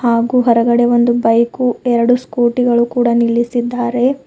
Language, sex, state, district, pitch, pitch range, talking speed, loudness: Kannada, female, Karnataka, Bidar, 240 Hz, 235-245 Hz, 125 wpm, -14 LUFS